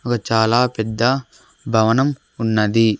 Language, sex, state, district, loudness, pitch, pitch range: Telugu, male, Andhra Pradesh, Sri Satya Sai, -18 LUFS, 115 Hz, 110-130 Hz